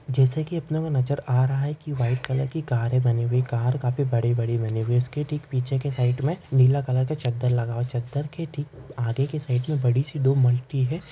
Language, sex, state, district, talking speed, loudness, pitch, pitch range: Hindi, male, Maharashtra, Chandrapur, 250 wpm, -24 LUFS, 130 Hz, 125-145 Hz